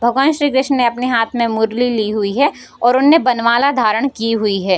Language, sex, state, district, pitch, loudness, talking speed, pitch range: Hindi, female, Bihar, Bhagalpur, 240 Hz, -15 LUFS, 225 wpm, 225-265 Hz